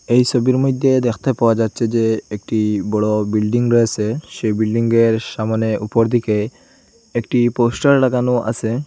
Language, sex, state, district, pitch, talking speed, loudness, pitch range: Bengali, male, Assam, Hailakandi, 115 Hz, 130 wpm, -17 LUFS, 110-120 Hz